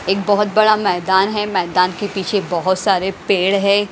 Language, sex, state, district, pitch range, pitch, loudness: Hindi, female, Haryana, Jhajjar, 185-205 Hz, 195 Hz, -16 LUFS